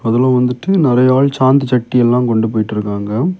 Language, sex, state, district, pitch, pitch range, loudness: Tamil, male, Tamil Nadu, Kanyakumari, 125 Hz, 115-135 Hz, -13 LUFS